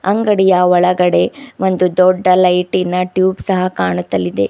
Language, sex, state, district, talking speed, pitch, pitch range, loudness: Kannada, female, Karnataka, Bidar, 105 wpm, 185 Hz, 180-190 Hz, -14 LUFS